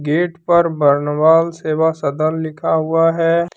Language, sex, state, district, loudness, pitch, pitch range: Hindi, male, Jharkhand, Deoghar, -16 LUFS, 160 Hz, 155-165 Hz